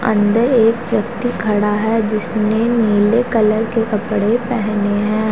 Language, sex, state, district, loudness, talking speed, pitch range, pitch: Hindi, female, Punjab, Pathankot, -16 LUFS, 135 wpm, 210-230 Hz, 220 Hz